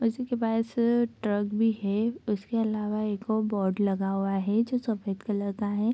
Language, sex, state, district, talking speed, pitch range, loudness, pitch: Hindi, female, Bihar, Madhepura, 180 wpm, 200-230 Hz, -28 LUFS, 215 Hz